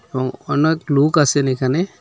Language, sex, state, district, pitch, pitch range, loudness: Bengali, male, Assam, Hailakandi, 140 Hz, 130-155 Hz, -17 LUFS